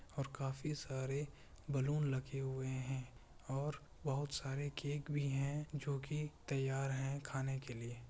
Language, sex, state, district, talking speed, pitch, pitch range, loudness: Hindi, male, Bihar, Kishanganj, 155 wpm, 135 Hz, 135-145 Hz, -42 LUFS